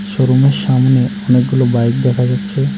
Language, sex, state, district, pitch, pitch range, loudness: Bengali, male, West Bengal, Cooch Behar, 130 Hz, 125-135 Hz, -13 LUFS